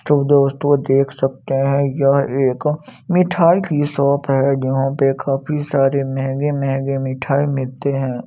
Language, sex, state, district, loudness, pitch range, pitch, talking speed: Hindi, male, Chandigarh, Chandigarh, -17 LUFS, 135-145 Hz, 140 Hz, 145 wpm